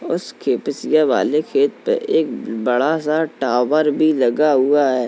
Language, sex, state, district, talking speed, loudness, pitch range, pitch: Hindi, male, Uttar Pradesh, Jalaun, 155 wpm, -18 LUFS, 130-160 Hz, 150 Hz